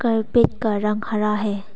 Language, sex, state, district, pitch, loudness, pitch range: Hindi, female, Arunachal Pradesh, Papum Pare, 210 Hz, -21 LUFS, 210-225 Hz